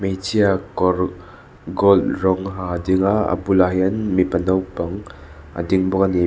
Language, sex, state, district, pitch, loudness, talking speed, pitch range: Mizo, male, Mizoram, Aizawl, 95 Hz, -19 LUFS, 190 wpm, 90-95 Hz